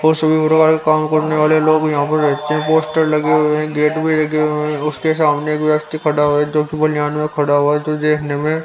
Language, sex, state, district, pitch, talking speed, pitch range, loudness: Hindi, male, Haryana, Rohtak, 150 Hz, 195 wpm, 150-155 Hz, -15 LUFS